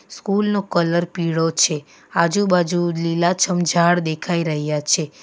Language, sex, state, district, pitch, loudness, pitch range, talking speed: Gujarati, female, Gujarat, Valsad, 170 Hz, -19 LUFS, 165-175 Hz, 125 wpm